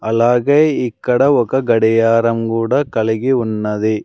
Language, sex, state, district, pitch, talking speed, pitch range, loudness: Telugu, male, Andhra Pradesh, Sri Satya Sai, 115 Hz, 105 wpm, 110-125 Hz, -15 LUFS